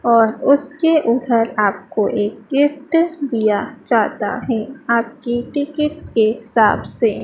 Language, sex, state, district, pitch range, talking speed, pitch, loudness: Hindi, female, Madhya Pradesh, Dhar, 220-285 Hz, 115 wpm, 235 Hz, -18 LUFS